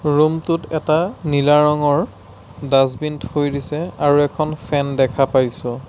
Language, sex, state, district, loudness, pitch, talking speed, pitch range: Assamese, male, Assam, Sonitpur, -18 LUFS, 145 Hz, 130 wpm, 135-150 Hz